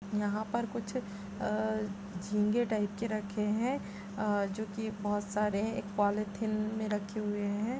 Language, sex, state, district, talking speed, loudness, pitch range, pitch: Hindi, female, Uttar Pradesh, Budaun, 140 wpm, -34 LUFS, 205-220 Hz, 210 Hz